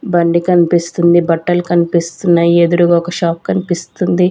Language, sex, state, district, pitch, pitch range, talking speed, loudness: Telugu, female, Andhra Pradesh, Sri Satya Sai, 175 Hz, 170-175 Hz, 110 wpm, -13 LUFS